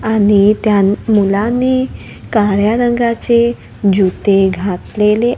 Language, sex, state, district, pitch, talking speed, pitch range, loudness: Marathi, female, Maharashtra, Gondia, 210 Hz, 80 wpm, 200-235 Hz, -13 LUFS